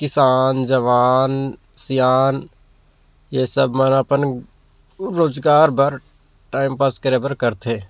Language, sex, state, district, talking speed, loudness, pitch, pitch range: Chhattisgarhi, male, Chhattisgarh, Rajnandgaon, 105 wpm, -18 LUFS, 135 Hz, 125-140 Hz